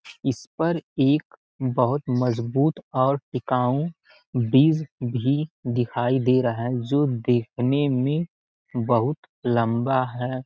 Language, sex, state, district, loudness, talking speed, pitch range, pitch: Hindi, male, Bihar, Gopalganj, -24 LUFS, 105 wpm, 125-145 Hz, 130 Hz